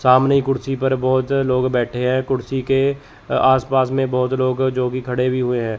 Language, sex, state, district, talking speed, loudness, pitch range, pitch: Hindi, male, Chandigarh, Chandigarh, 195 wpm, -19 LUFS, 125-135 Hz, 130 Hz